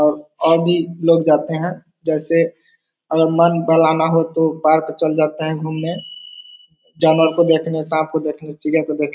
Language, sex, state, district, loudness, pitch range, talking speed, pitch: Hindi, male, Bihar, East Champaran, -17 LUFS, 155-165 Hz, 175 wpm, 160 Hz